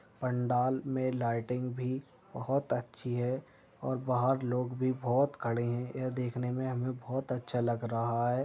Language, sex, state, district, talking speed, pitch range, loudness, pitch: Hindi, male, Uttar Pradesh, Gorakhpur, 165 wpm, 120-130 Hz, -33 LUFS, 125 Hz